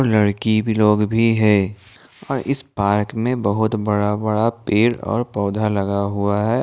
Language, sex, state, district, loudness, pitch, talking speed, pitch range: Hindi, male, Jharkhand, Ranchi, -19 LUFS, 105 Hz, 155 wpm, 100-115 Hz